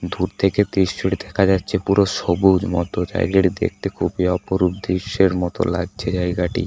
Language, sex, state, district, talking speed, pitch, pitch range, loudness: Bengali, male, West Bengal, Paschim Medinipur, 155 wpm, 95 Hz, 90-95 Hz, -20 LUFS